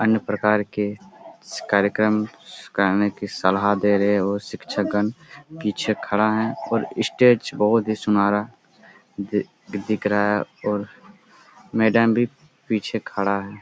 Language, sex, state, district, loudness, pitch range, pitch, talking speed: Hindi, male, Jharkhand, Jamtara, -22 LUFS, 100-110 Hz, 105 Hz, 130 wpm